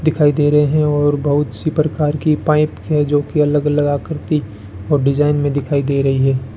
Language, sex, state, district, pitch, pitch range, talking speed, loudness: Hindi, male, Rajasthan, Bikaner, 145 Hz, 140-150 Hz, 220 wpm, -16 LUFS